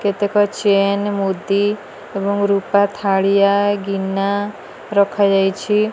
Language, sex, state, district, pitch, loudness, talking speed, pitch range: Odia, female, Odisha, Malkangiri, 200 Hz, -17 LUFS, 90 wpm, 195-205 Hz